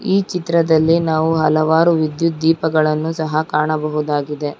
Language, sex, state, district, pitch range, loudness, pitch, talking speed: Kannada, female, Karnataka, Bangalore, 155-165 Hz, -17 LUFS, 160 Hz, 105 wpm